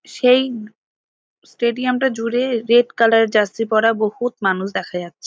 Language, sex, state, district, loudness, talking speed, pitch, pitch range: Bengali, female, West Bengal, North 24 Parganas, -18 LUFS, 135 wpm, 230 Hz, 215-245 Hz